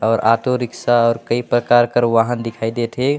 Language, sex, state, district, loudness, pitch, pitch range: Sadri, male, Chhattisgarh, Jashpur, -17 LUFS, 120 Hz, 115-120 Hz